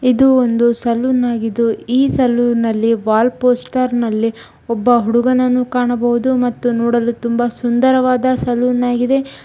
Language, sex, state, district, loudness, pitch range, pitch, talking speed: Kannada, female, Karnataka, Shimoga, -15 LUFS, 235-250 Hz, 245 Hz, 115 wpm